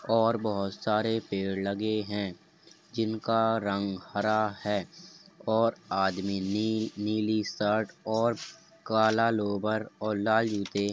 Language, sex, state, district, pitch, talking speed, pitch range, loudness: Hindi, male, Uttar Pradesh, Hamirpur, 110 Hz, 120 wpm, 100-110 Hz, -29 LUFS